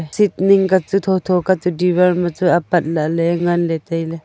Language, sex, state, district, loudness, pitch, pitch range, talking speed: Wancho, female, Arunachal Pradesh, Longding, -16 LUFS, 175 Hz, 165-185 Hz, 210 wpm